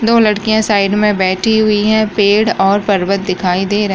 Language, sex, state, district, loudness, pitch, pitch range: Kumaoni, female, Uttarakhand, Uttarkashi, -13 LUFS, 205 Hz, 195-220 Hz